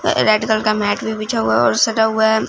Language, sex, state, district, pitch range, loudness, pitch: Hindi, female, Punjab, Fazilka, 215-220 Hz, -16 LUFS, 220 Hz